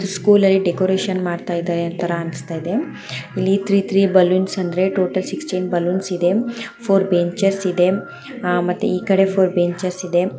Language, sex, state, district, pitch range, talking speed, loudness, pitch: Kannada, female, Karnataka, Chamarajanagar, 175-195 Hz, 150 wpm, -19 LUFS, 185 Hz